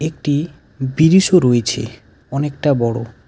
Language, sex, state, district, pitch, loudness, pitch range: Bengali, male, West Bengal, Alipurduar, 135 Hz, -16 LUFS, 115-150 Hz